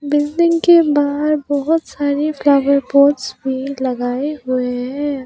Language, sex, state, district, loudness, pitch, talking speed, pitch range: Hindi, female, Arunachal Pradesh, Papum Pare, -16 LUFS, 285 Hz, 125 wpm, 265-295 Hz